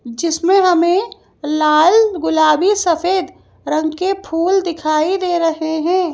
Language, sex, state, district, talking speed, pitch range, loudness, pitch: Hindi, female, Madhya Pradesh, Bhopal, 115 wpm, 315-375 Hz, -15 LUFS, 340 Hz